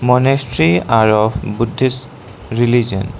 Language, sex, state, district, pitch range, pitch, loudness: English, male, Arunachal Pradesh, Lower Dibang Valley, 105-125 Hz, 115 Hz, -15 LUFS